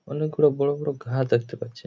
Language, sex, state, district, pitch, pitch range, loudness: Bengali, male, West Bengal, Paschim Medinipur, 145 Hz, 130-150 Hz, -24 LUFS